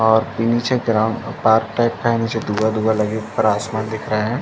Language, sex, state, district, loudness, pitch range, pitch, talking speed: Hindi, male, Chhattisgarh, Rajnandgaon, -19 LUFS, 110-115 Hz, 110 Hz, 215 wpm